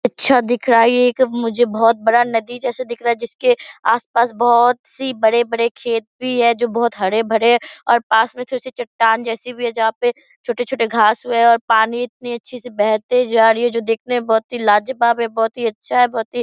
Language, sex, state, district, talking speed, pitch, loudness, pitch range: Hindi, female, Bihar, Purnia, 225 wpm, 235 Hz, -16 LUFS, 225-245 Hz